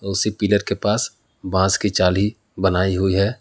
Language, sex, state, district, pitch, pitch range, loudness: Hindi, male, Jharkhand, Palamu, 100 Hz, 95-105 Hz, -20 LUFS